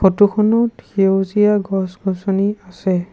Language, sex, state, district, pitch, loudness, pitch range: Assamese, male, Assam, Sonitpur, 195 Hz, -17 LUFS, 190-210 Hz